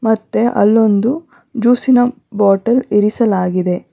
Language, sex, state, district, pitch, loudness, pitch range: Kannada, female, Karnataka, Bangalore, 225 Hz, -14 LUFS, 205-245 Hz